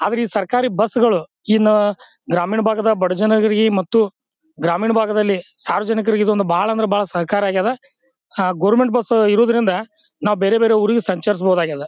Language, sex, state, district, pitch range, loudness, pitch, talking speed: Kannada, male, Karnataka, Bijapur, 200-230 Hz, -17 LUFS, 215 Hz, 135 wpm